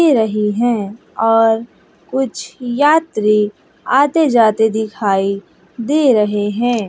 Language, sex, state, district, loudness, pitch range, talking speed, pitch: Hindi, female, Bihar, West Champaran, -15 LUFS, 210-260 Hz, 95 wpm, 225 Hz